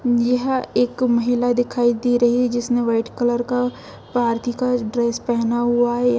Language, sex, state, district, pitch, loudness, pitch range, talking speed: Hindi, female, Jharkhand, Jamtara, 245 Hz, -20 LUFS, 240-245 Hz, 165 wpm